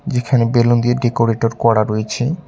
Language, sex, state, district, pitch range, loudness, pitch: Bengali, male, West Bengal, Cooch Behar, 115-125 Hz, -16 LUFS, 120 Hz